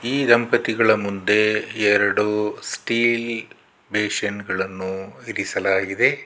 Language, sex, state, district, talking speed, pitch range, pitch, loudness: Kannada, male, Karnataka, Bangalore, 75 wpm, 100-115 Hz, 105 Hz, -21 LUFS